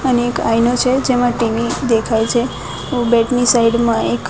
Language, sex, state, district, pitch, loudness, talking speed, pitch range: Gujarati, female, Gujarat, Gandhinagar, 240 Hz, -15 LUFS, 195 wpm, 230-245 Hz